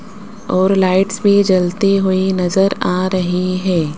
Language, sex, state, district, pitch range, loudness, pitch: Hindi, female, Rajasthan, Jaipur, 185-195 Hz, -15 LUFS, 190 Hz